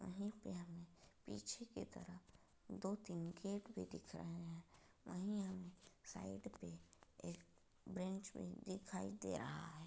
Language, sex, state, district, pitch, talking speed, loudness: Hindi, female, Uttar Pradesh, Etah, 170 Hz, 135 wpm, -50 LUFS